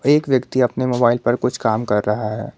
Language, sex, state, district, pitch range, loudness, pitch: Hindi, male, Jharkhand, Garhwa, 110-130 Hz, -18 LUFS, 120 Hz